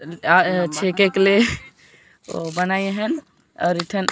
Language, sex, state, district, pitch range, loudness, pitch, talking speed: Sadri, female, Chhattisgarh, Jashpur, 175-195 Hz, -19 LUFS, 185 Hz, 115 wpm